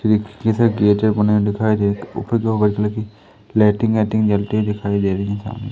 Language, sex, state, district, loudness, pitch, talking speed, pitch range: Hindi, male, Madhya Pradesh, Umaria, -18 LUFS, 105 Hz, 240 wpm, 105-110 Hz